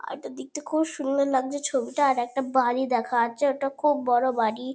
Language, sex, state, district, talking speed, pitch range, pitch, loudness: Bengali, female, West Bengal, Kolkata, 200 wpm, 245-285 Hz, 265 Hz, -25 LUFS